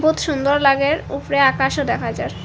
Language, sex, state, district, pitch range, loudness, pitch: Bengali, female, Assam, Hailakandi, 275-305 Hz, -18 LUFS, 285 Hz